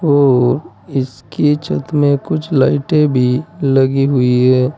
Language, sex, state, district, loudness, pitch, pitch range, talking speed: Hindi, male, Uttar Pradesh, Saharanpur, -14 LUFS, 135 Hz, 130-150 Hz, 125 wpm